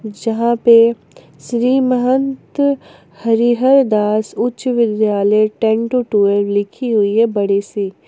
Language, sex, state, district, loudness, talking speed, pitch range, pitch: Hindi, female, Jharkhand, Ranchi, -15 LUFS, 120 wpm, 210-245 Hz, 225 Hz